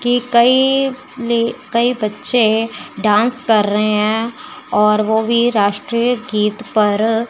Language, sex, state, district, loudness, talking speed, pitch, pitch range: Hindi, female, Chandigarh, Chandigarh, -15 LUFS, 125 wpm, 230 Hz, 215-245 Hz